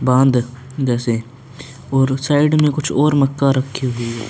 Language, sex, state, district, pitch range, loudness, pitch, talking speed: Hindi, male, Uttar Pradesh, Hamirpur, 125-140 Hz, -17 LUFS, 130 Hz, 155 wpm